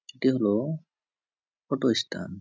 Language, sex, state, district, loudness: Bengali, male, West Bengal, Jhargram, -27 LUFS